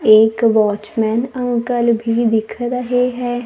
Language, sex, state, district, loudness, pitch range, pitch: Hindi, female, Maharashtra, Gondia, -16 LUFS, 220-245 Hz, 235 Hz